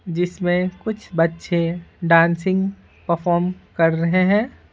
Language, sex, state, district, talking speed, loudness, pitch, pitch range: Hindi, male, Bihar, Patna, 100 wpm, -20 LUFS, 175 Hz, 170-185 Hz